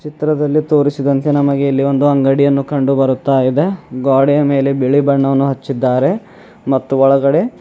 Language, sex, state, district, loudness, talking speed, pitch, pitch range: Kannada, male, Karnataka, Bidar, -14 LUFS, 125 wpm, 140 Hz, 135-145 Hz